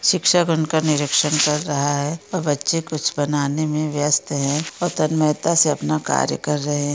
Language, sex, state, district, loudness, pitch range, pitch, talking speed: Hindi, female, Jharkhand, Sahebganj, -20 LUFS, 145-160 Hz, 150 Hz, 165 wpm